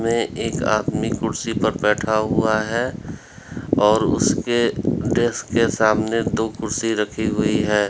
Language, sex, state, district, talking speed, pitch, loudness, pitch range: Hindi, male, Uttar Pradesh, Lalitpur, 135 wpm, 110 Hz, -20 LUFS, 105-115 Hz